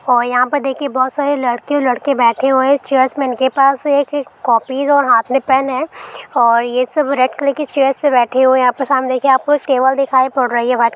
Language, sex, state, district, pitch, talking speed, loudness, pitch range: Hindi, female, Chhattisgarh, Balrampur, 265 Hz, 255 wpm, -14 LUFS, 250-280 Hz